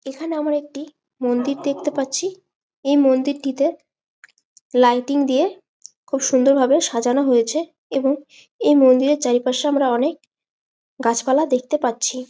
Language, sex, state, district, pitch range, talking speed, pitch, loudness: Bengali, female, West Bengal, Malda, 255-295 Hz, 130 wpm, 275 Hz, -19 LUFS